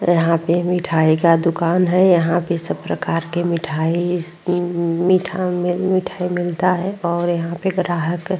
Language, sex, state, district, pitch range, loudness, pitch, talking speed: Hindi, female, Uttar Pradesh, Muzaffarnagar, 170-180 Hz, -18 LUFS, 175 Hz, 165 wpm